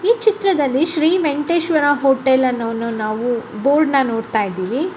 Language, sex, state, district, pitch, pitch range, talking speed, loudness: Kannada, female, Karnataka, Raichur, 275 Hz, 230-320 Hz, 120 wpm, -17 LUFS